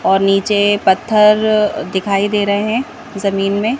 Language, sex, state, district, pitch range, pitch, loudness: Hindi, female, Madhya Pradesh, Bhopal, 195-215 Hz, 205 Hz, -14 LUFS